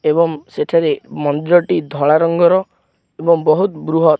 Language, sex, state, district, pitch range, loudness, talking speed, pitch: Odia, male, Odisha, Khordha, 155-190 Hz, -15 LUFS, 115 wpm, 165 Hz